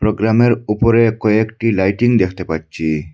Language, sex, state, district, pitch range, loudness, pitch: Bengali, male, Assam, Hailakandi, 95-115 Hz, -15 LUFS, 110 Hz